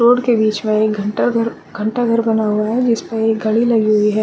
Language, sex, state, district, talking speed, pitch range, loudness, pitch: Hindi, female, Uttarakhand, Uttarkashi, 240 wpm, 215-230 Hz, -16 LUFS, 220 Hz